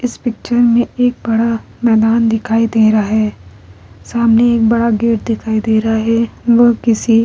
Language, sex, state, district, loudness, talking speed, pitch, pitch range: Hindi, female, Bihar, Vaishali, -13 LUFS, 175 wpm, 225 Hz, 220-235 Hz